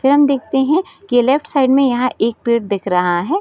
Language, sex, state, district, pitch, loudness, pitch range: Hindi, female, Bihar, Sitamarhi, 265 Hz, -15 LUFS, 235-285 Hz